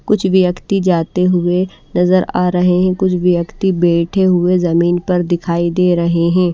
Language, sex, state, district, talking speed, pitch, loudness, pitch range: Hindi, female, Odisha, Malkangiri, 165 wpm, 180 Hz, -14 LUFS, 175-185 Hz